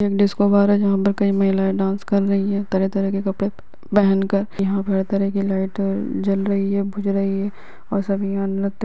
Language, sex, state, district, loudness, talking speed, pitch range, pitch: Hindi, female, Bihar, Lakhisarai, -20 LUFS, 230 wpm, 195-200 Hz, 200 Hz